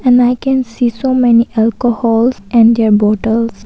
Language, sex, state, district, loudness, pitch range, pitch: English, female, Arunachal Pradesh, Papum Pare, -12 LUFS, 225-250 Hz, 235 Hz